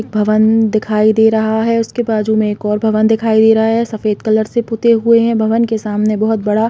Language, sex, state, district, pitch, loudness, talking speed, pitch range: Hindi, female, Chhattisgarh, Bilaspur, 220 Hz, -13 LUFS, 240 wpm, 215-225 Hz